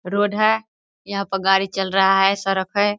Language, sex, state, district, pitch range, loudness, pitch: Hindi, female, Bihar, Sitamarhi, 195-205 Hz, -19 LUFS, 195 Hz